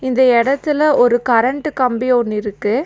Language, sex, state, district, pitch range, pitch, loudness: Tamil, female, Tamil Nadu, Nilgiris, 235-270 Hz, 250 Hz, -15 LUFS